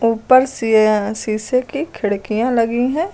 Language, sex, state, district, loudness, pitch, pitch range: Hindi, female, Uttar Pradesh, Lucknow, -17 LUFS, 230 Hz, 215-255 Hz